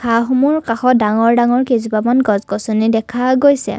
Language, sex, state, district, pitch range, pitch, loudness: Assamese, female, Assam, Kamrup Metropolitan, 220-255 Hz, 235 Hz, -14 LUFS